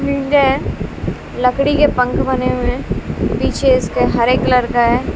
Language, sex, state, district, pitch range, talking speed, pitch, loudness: Hindi, female, Bihar, West Champaran, 250-280 Hz, 130 wpm, 265 Hz, -16 LUFS